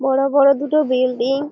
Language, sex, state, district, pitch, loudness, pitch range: Bengali, female, West Bengal, Malda, 275 Hz, -17 LUFS, 260-285 Hz